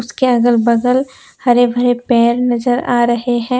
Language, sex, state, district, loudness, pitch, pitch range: Hindi, female, Jharkhand, Deoghar, -14 LUFS, 245 Hz, 240-250 Hz